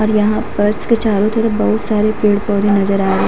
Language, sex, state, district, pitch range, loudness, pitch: Hindi, female, Uttar Pradesh, Hamirpur, 205-215 Hz, -15 LUFS, 210 Hz